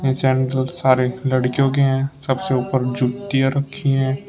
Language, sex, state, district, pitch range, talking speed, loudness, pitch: Hindi, male, Uttar Pradesh, Shamli, 130-135 Hz, 155 wpm, -19 LUFS, 130 Hz